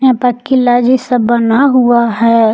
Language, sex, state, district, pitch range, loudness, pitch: Hindi, female, Jharkhand, Palamu, 235-255 Hz, -10 LUFS, 245 Hz